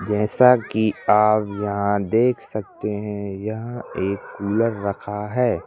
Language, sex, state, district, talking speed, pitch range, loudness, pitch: Hindi, male, Madhya Pradesh, Bhopal, 125 wpm, 100-115 Hz, -21 LUFS, 105 Hz